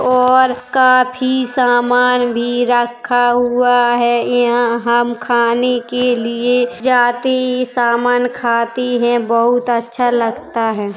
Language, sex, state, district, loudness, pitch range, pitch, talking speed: Hindi, female, Uttar Pradesh, Hamirpur, -14 LUFS, 240-250 Hz, 245 Hz, 110 wpm